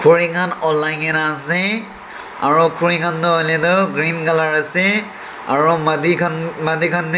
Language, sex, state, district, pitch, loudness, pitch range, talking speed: Nagamese, male, Nagaland, Dimapur, 165 Hz, -16 LUFS, 155-175 Hz, 115 wpm